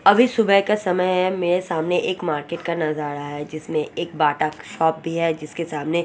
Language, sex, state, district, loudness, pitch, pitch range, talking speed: Hindi, female, Odisha, Sambalpur, -22 LUFS, 165 Hz, 155-180 Hz, 200 wpm